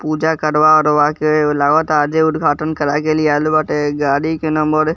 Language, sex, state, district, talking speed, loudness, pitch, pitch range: Bhojpuri, male, Bihar, East Champaran, 155 wpm, -15 LUFS, 155 Hz, 150-155 Hz